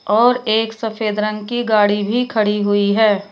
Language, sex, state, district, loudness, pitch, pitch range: Hindi, female, Uttar Pradesh, Shamli, -17 LUFS, 215 Hz, 205-225 Hz